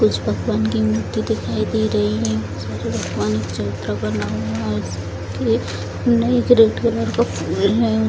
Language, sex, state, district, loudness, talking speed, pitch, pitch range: Hindi, female, Bihar, Jamui, -20 LUFS, 135 wpm, 105 Hz, 105-110 Hz